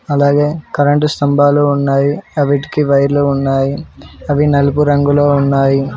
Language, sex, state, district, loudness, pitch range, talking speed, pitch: Telugu, male, Telangana, Mahabubabad, -13 LUFS, 140-145 Hz, 120 wpm, 145 Hz